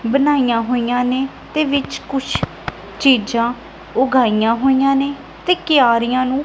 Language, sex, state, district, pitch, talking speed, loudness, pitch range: Punjabi, female, Punjab, Kapurthala, 260 Hz, 120 wpm, -17 LUFS, 240-275 Hz